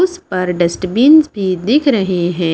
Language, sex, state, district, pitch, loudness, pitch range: Hindi, female, Maharashtra, Washim, 190 Hz, -13 LUFS, 180-285 Hz